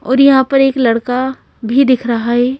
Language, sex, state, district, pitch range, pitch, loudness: Hindi, female, Madhya Pradesh, Bhopal, 240-270 Hz, 255 Hz, -13 LUFS